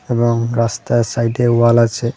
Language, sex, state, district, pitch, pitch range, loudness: Bengali, male, Tripura, West Tripura, 120 Hz, 115-120 Hz, -15 LUFS